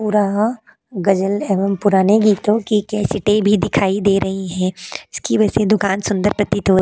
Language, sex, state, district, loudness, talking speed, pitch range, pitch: Hindi, female, Uttar Pradesh, Jalaun, -17 LUFS, 185 wpm, 195-210 Hz, 205 Hz